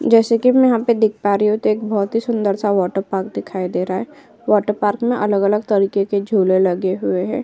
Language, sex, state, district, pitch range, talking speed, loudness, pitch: Hindi, female, Uttar Pradesh, Jyotiba Phule Nagar, 195-225 Hz, 250 wpm, -17 LUFS, 205 Hz